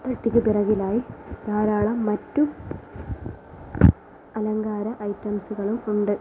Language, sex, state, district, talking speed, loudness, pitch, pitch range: Malayalam, female, Kerala, Kozhikode, 70 wpm, -24 LUFS, 215 Hz, 210-225 Hz